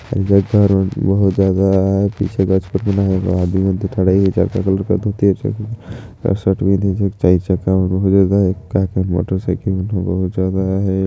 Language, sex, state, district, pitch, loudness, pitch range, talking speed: Chhattisgarhi, male, Chhattisgarh, Jashpur, 95 Hz, -16 LUFS, 95-100 Hz, 110 wpm